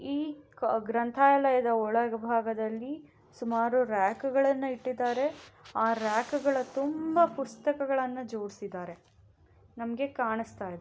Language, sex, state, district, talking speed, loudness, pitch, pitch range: Kannada, female, Karnataka, Raichur, 90 wpm, -30 LUFS, 245 Hz, 225-275 Hz